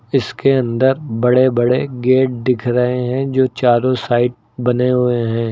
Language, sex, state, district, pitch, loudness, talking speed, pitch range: Hindi, male, Uttar Pradesh, Lucknow, 125 Hz, -16 LUFS, 150 wpm, 120-130 Hz